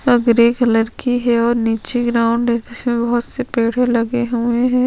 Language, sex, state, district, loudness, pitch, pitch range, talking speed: Hindi, female, Chhattisgarh, Sukma, -17 LUFS, 240 Hz, 235-245 Hz, 195 wpm